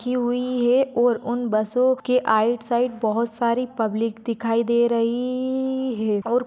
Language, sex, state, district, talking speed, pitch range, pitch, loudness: Hindi, female, Maharashtra, Sindhudurg, 165 wpm, 230-250 Hz, 240 Hz, -22 LUFS